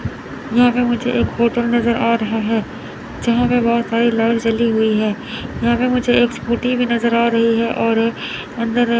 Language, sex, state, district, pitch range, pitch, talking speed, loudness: Hindi, female, Chandigarh, Chandigarh, 230-240 Hz, 235 Hz, 195 wpm, -17 LUFS